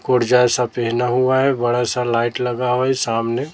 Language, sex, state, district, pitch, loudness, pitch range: Hindi, female, Chhattisgarh, Raipur, 125 Hz, -18 LUFS, 120-125 Hz